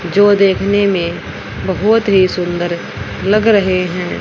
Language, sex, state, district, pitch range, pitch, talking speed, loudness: Hindi, female, Haryana, Rohtak, 180-205 Hz, 190 Hz, 130 wpm, -14 LUFS